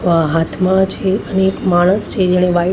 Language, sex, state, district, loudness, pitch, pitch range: Gujarati, female, Maharashtra, Mumbai Suburban, -15 LUFS, 185 Hz, 175-190 Hz